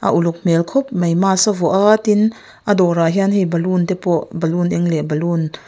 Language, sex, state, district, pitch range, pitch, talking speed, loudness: Mizo, female, Mizoram, Aizawl, 170-195 Hz, 175 Hz, 245 wpm, -16 LUFS